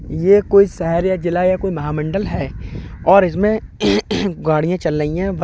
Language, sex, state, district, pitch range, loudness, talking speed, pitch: Hindi, male, Uttar Pradesh, Budaun, 165-200 Hz, -17 LUFS, 175 wpm, 185 Hz